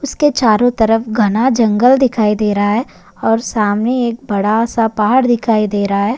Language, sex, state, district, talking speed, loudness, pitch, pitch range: Hindi, male, Uttarakhand, Tehri Garhwal, 185 wpm, -14 LUFS, 225 Hz, 210-245 Hz